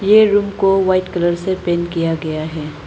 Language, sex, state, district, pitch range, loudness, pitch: Hindi, female, Arunachal Pradesh, Lower Dibang Valley, 165-195 Hz, -16 LUFS, 175 Hz